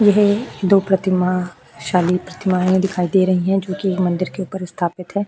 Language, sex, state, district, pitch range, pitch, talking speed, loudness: Hindi, female, Uttar Pradesh, Jyotiba Phule Nagar, 180-195 Hz, 185 Hz, 180 wpm, -18 LUFS